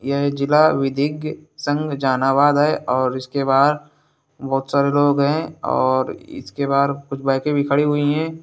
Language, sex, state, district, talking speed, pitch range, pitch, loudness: Hindi, male, Bihar, Gaya, 155 wpm, 135-150 Hz, 140 Hz, -19 LUFS